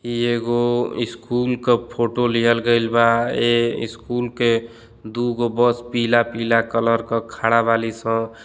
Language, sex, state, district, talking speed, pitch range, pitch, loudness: Bhojpuri, male, Uttar Pradesh, Deoria, 140 wpm, 115-120 Hz, 115 Hz, -20 LUFS